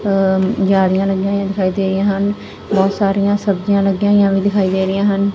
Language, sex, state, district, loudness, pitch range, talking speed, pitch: Punjabi, female, Punjab, Fazilka, -15 LUFS, 195-200 Hz, 190 wpm, 195 Hz